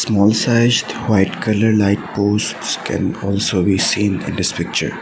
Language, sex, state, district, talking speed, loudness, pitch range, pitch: English, male, Assam, Sonitpur, 155 wpm, -17 LUFS, 100-110 Hz, 105 Hz